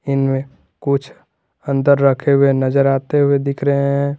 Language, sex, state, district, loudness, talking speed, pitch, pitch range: Hindi, male, Jharkhand, Garhwa, -16 LUFS, 155 wpm, 140 Hz, 135-140 Hz